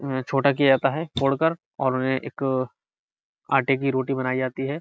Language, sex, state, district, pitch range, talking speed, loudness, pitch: Hindi, male, Uttar Pradesh, Budaun, 130-140 Hz, 185 wpm, -23 LUFS, 135 Hz